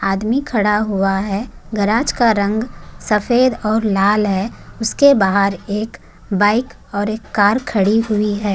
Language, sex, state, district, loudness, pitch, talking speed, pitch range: Hindi, female, Maharashtra, Chandrapur, -17 LUFS, 210 Hz, 145 wpm, 200-225 Hz